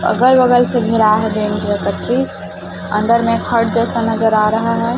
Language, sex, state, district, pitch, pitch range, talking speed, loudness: Hindi, male, Chhattisgarh, Raipur, 225 Hz, 205-230 Hz, 120 wpm, -15 LUFS